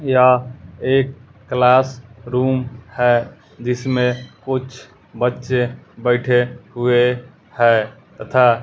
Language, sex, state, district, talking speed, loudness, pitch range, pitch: Hindi, male, Bihar, West Champaran, 85 wpm, -18 LUFS, 120-130 Hz, 125 Hz